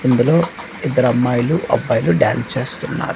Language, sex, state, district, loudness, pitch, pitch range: Telugu, male, Andhra Pradesh, Manyam, -16 LUFS, 130 Hz, 125-165 Hz